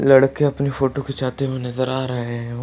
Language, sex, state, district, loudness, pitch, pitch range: Hindi, male, Bihar, Samastipur, -21 LUFS, 130 Hz, 125-135 Hz